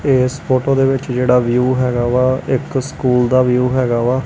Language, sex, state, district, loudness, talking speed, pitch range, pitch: Punjabi, male, Punjab, Kapurthala, -15 LUFS, 195 wpm, 125-130 Hz, 130 Hz